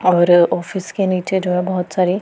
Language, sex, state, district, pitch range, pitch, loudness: Hindi, female, Punjab, Pathankot, 180-190 Hz, 185 Hz, -17 LUFS